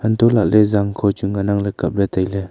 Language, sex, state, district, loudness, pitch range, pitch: Wancho, male, Arunachal Pradesh, Longding, -17 LUFS, 100-105 Hz, 100 Hz